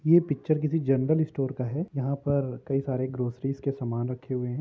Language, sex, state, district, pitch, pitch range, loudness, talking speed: Hindi, male, Uttar Pradesh, Jyotiba Phule Nagar, 135 Hz, 130-150 Hz, -28 LUFS, 220 wpm